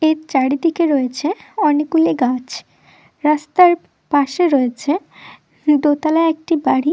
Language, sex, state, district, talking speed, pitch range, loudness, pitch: Bengali, female, West Bengal, Dakshin Dinajpur, 95 wpm, 285-330 Hz, -17 LUFS, 300 Hz